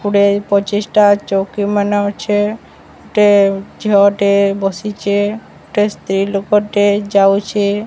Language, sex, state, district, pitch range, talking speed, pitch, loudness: Odia, male, Odisha, Sambalpur, 200-205 Hz, 115 wpm, 205 Hz, -14 LUFS